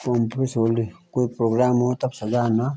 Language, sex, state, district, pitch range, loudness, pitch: Garhwali, male, Uttarakhand, Tehri Garhwal, 115-125 Hz, -22 LUFS, 120 Hz